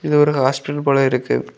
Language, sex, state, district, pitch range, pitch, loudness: Tamil, male, Tamil Nadu, Kanyakumari, 125-145 Hz, 135 Hz, -17 LUFS